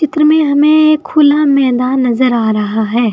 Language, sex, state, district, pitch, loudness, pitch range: Hindi, female, Uttar Pradesh, Saharanpur, 275 Hz, -11 LUFS, 240-305 Hz